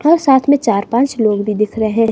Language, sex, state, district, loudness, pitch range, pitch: Hindi, female, Himachal Pradesh, Shimla, -14 LUFS, 215-270 Hz, 230 Hz